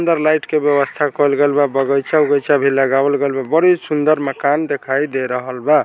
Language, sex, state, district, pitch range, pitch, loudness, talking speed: Bhojpuri, male, Bihar, Saran, 140-150 Hz, 145 Hz, -16 LUFS, 205 wpm